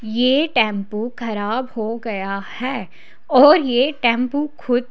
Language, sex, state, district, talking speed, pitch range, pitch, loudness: Hindi, female, Haryana, Charkhi Dadri, 135 wpm, 220-260 Hz, 245 Hz, -19 LUFS